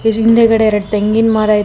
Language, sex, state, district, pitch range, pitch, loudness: Kannada, female, Karnataka, Bangalore, 210-225 Hz, 220 Hz, -12 LUFS